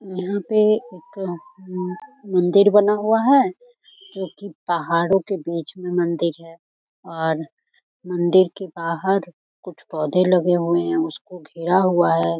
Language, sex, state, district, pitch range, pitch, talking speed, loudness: Hindi, female, Jharkhand, Jamtara, 170-200 Hz, 180 Hz, 135 wpm, -20 LUFS